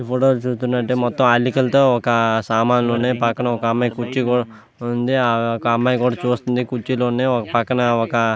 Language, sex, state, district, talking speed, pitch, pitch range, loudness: Telugu, male, Andhra Pradesh, Visakhapatnam, 160 wpm, 120 Hz, 115-125 Hz, -18 LUFS